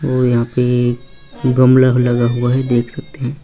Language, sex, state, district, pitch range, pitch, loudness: Hindi, male, Chhattisgarh, Raigarh, 120-130 Hz, 125 Hz, -15 LUFS